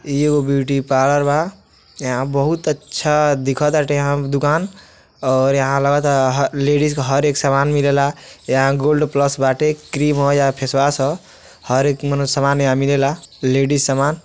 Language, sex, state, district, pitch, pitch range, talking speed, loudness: Bhojpuri, male, Uttar Pradesh, Deoria, 140 Hz, 135-150 Hz, 165 wpm, -17 LUFS